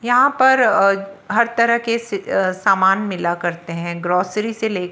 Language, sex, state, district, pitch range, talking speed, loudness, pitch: Hindi, female, Maharashtra, Washim, 180-230 Hz, 160 wpm, -17 LUFS, 195 Hz